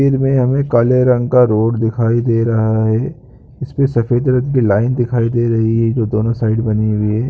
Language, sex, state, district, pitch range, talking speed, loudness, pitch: Hindi, male, Chhattisgarh, Rajnandgaon, 110-125 Hz, 220 wpm, -14 LUFS, 115 Hz